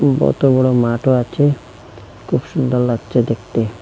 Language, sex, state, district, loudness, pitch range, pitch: Bengali, male, Assam, Hailakandi, -16 LUFS, 115-130 Hz, 120 Hz